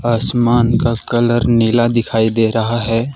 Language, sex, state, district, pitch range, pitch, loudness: Hindi, male, Jharkhand, Deoghar, 115-120 Hz, 115 Hz, -14 LUFS